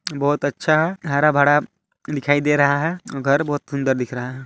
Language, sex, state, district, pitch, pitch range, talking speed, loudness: Hindi, male, Chhattisgarh, Balrampur, 145 Hz, 140-150 Hz, 190 wpm, -19 LUFS